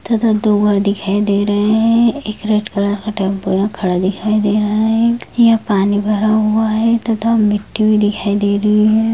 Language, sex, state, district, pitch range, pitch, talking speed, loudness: Hindi, female, Bihar, Darbhanga, 205-220 Hz, 210 Hz, 195 wpm, -15 LUFS